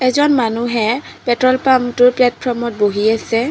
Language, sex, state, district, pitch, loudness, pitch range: Assamese, female, Assam, Kamrup Metropolitan, 245 Hz, -15 LUFS, 230-255 Hz